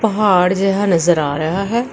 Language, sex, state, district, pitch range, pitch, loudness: Punjabi, female, Karnataka, Bangalore, 175-205 Hz, 195 Hz, -15 LUFS